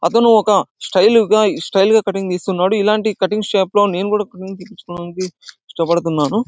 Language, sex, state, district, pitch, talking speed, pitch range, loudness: Telugu, male, Andhra Pradesh, Anantapur, 195 Hz, 150 wpm, 185-215 Hz, -15 LUFS